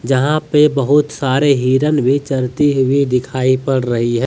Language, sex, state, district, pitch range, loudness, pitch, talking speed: Hindi, male, Jharkhand, Deoghar, 130-145 Hz, -15 LUFS, 135 Hz, 170 wpm